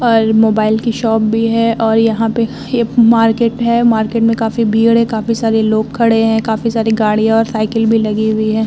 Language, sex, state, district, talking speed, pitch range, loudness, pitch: Hindi, female, Bihar, Vaishali, 215 wpm, 220-230 Hz, -13 LUFS, 225 Hz